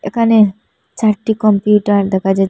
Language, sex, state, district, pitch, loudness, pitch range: Bengali, female, Assam, Hailakandi, 210 Hz, -13 LUFS, 195-215 Hz